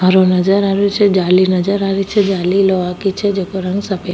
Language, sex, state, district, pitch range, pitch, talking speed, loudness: Rajasthani, female, Rajasthan, Nagaur, 185-195 Hz, 195 Hz, 260 wpm, -14 LUFS